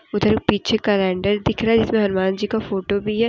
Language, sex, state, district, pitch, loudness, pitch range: Hindi, female, Jharkhand, Deoghar, 205 Hz, -20 LUFS, 195-220 Hz